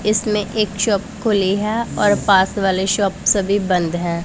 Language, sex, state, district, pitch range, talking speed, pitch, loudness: Hindi, female, Punjab, Pathankot, 190-210 Hz, 170 wpm, 200 Hz, -17 LUFS